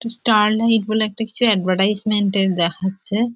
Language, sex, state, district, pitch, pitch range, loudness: Bengali, female, West Bengal, Jhargram, 210 Hz, 195-225 Hz, -18 LUFS